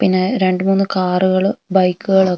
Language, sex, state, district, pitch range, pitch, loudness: Malayalam, female, Kerala, Wayanad, 185-195 Hz, 190 Hz, -16 LUFS